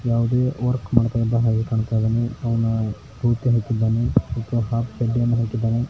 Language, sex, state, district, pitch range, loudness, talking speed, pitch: Kannada, male, Karnataka, Belgaum, 115-120 Hz, -21 LUFS, 100 wpm, 115 Hz